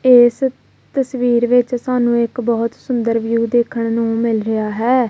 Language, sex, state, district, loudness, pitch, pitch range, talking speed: Punjabi, female, Punjab, Kapurthala, -17 LUFS, 240 Hz, 230-245 Hz, 150 wpm